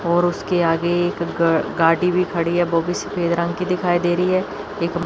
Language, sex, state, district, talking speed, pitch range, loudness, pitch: Hindi, female, Chandigarh, Chandigarh, 225 wpm, 170-180 Hz, -20 LUFS, 175 Hz